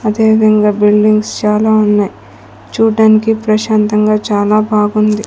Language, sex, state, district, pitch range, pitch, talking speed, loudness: Telugu, female, Andhra Pradesh, Sri Satya Sai, 210-215 Hz, 215 Hz, 90 wpm, -11 LUFS